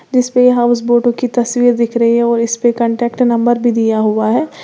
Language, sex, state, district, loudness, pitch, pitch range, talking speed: Hindi, female, Uttar Pradesh, Lalitpur, -13 LUFS, 240 Hz, 235-245 Hz, 230 wpm